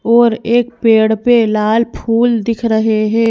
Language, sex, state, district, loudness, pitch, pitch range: Hindi, female, Madhya Pradesh, Bhopal, -13 LUFS, 230 Hz, 220-235 Hz